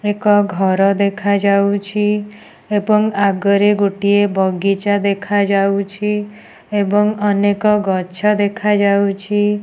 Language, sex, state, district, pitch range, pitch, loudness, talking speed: Odia, female, Odisha, Nuapada, 200-210 Hz, 205 Hz, -16 LUFS, 75 wpm